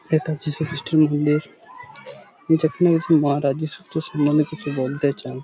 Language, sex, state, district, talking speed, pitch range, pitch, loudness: Bengali, male, West Bengal, Purulia, 145 wpm, 145-160 Hz, 155 Hz, -21 LUFS